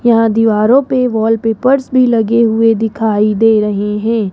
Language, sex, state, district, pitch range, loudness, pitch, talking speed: Hindi, female, Rajasthan, Jaipur, 220-235 Hz, -12 LUFS, 225 Hz, 150 wpm